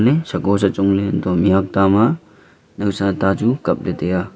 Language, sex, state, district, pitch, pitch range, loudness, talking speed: Wancho, male, Arunachal Pradesh, Longding, 100 Hz, 95-105 Hz, -17 LUFS, 235 wpm